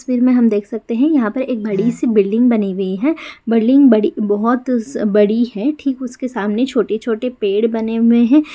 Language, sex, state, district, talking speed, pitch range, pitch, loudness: Hindi, female, Bihar, Jamui, 210 wpm, 215-255 Hz, 235 Hz, -15 LUFS